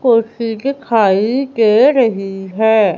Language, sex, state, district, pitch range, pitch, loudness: Hindi, female, Madhya Pradesh, Umaria, 210-240 Hz, 225 Hz, -14 LUFS